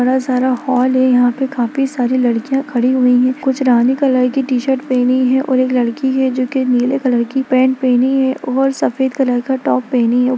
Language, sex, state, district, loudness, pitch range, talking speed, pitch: Hindi, female, Bihar, Jamui, -15 LUFS, 250-265 Hz, 210 wpm, 255 Hz